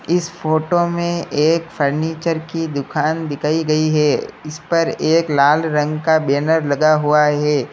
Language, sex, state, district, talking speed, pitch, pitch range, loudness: Hindi, male, Uttar Pradesh, Lalitpur, 155 wpm, 155 Hz, 150-165 Hz, -17 LUFS